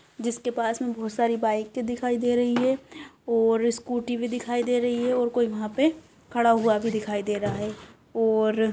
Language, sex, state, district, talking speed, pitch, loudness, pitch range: Hindi, female, Uttar Pradesh, Etah, 205 wpm, 235 Hz, -25 LUFS, 220-245 Hz